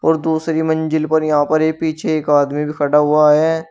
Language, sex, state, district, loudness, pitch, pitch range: Hindi, male, Uttar Pradesh, Shamli, -16 LUFS, 155 Hz, 150-160 Hz